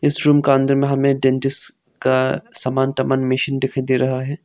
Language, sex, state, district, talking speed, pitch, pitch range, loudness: Hindi, male, Arunachal Pradesh, Longding, 175 wpm, 135 Hz, 130-140 Hz, -17 LUFS